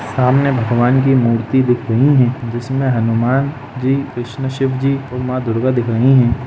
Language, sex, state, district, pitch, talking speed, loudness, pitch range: Hindi, male, Jharkhand, Jamtara, 130 Hz, 165 wpm, -15 LUFS, 120-135 Hz